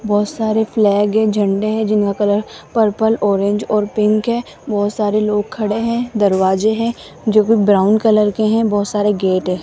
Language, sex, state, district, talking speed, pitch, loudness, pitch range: Hindi, female, Rajasthan, Jaipur, 185 wpm, 210 Hz, -16 LUFS, 205-220 Hz